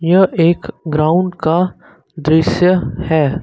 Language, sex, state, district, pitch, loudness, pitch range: Hindi, male, Uttar Pradesh, Lucknow, 165 Hz, -15 LUFS, 160-180 Hz